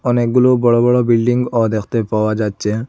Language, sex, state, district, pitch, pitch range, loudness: Bengali, male, Assam, Hailakandi, 115 Hz, 110-125 Hz, -15 LUFS